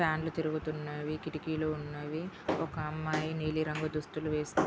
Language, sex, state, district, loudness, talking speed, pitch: Telugu, female, Andhra Pradesh, Guntur, -35 LUFS, 130 wpm, 155 Hz